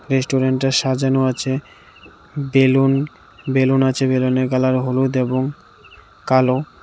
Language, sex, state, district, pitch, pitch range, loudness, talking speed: Bengali, male, Tripura, West Tripura, 130 Hz, 130-135 Hz, -18 LUFS, 95 wpm